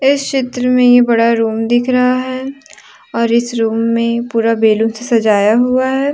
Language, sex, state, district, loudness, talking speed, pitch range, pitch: Hindi, female, Jharkhand, Deoghar, -13 LUFS, 175 wpm, 230-255 Hz, 240 Hz